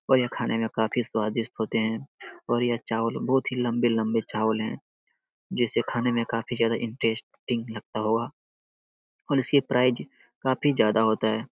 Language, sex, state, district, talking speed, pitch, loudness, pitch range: Hindi, male, Bihar, Lakhisarai, 160 wpm, 115 Hz, -26 LUFS, 110-120 Hz